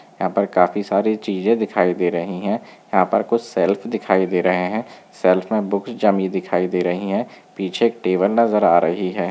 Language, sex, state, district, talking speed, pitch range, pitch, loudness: Hindi, male, Chhattisgarh, Bilaspur, 205 wpm, 90-110 Hz, 95 Hz, -19 LUFS